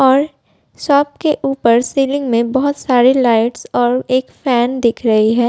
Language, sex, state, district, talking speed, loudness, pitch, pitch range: Hindi, female, Uttar Pradesh, Budaun, 165 wpm, -14 LUFS, 255 Hz, 240-275 Hz